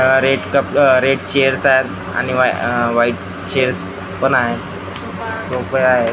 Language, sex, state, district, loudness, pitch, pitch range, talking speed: Marathi, male, Maharashtra, Gondia, -16 LUFS, 130 Hz, 95-135 Hz, 145 wpm